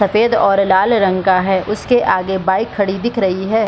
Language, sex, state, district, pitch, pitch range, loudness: Hindi, female, Bihar, Supaul, 195 Hz, 190-220 Hz, -15 LUFS